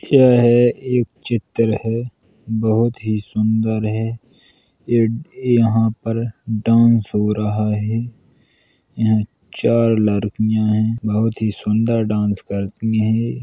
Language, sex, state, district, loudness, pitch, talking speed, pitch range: Hindi, male, Uttar Pradesh, Jalaun, -18 LUFS, 110 Hz, 105 wpm, 110-115 Hz